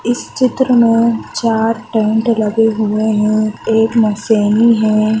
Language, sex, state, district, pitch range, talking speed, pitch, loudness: Hindi, female, Chhattisgarh, Raigarh, 215-230 Hz, 105 wpm, 225 Hz, -13 LUFS